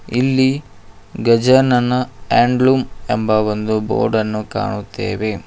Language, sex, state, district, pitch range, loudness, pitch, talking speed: Kannada, male, Karnataka, Koppal, 105-125 Hz, -17 LUFS, 110 Hz, 100 wpm